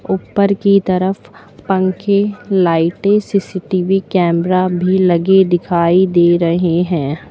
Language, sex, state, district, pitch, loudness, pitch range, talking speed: Hindi, female, Uttar Pradesh, Lucknow, 185 Hz, -14 LUFS, 175-195 Hz, 105 wpm